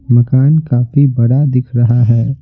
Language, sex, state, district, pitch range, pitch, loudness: Hindi, male, Bihar, Patna, 120-135 Hz, 125 Hz, -11 LUFS